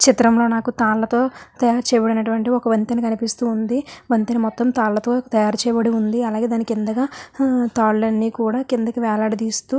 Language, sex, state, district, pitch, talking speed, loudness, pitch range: Telugu, female, Andhra Pradesh, Visakhapatnam, 230 Hz, 160 wpm, -19 LUFS, 225-245 Hz